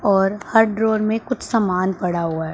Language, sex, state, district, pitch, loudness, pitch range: Hindi, female, Punjab, Pathankot, 205 Hz, -19 LUFS, 185-220 Hz